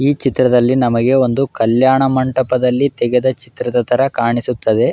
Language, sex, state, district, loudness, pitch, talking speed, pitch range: Kannada, male, Karnataka, Raichur, -15 LUFS, 125 Hz, 135 wpm, 120-130 Hz